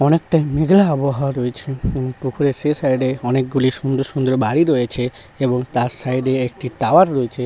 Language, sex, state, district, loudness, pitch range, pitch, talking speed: Bengali, male, West Bengal, Paschim Medinipur, -18 LUFS, 125-145 Hz, 130 Hz, 195 wpm